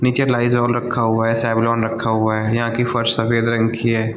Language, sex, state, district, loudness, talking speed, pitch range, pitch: Hindi, male, Chhattisgarh, Balrampur, -18 LUFS, 230 wpm, 115-120 Hz, 115 Hz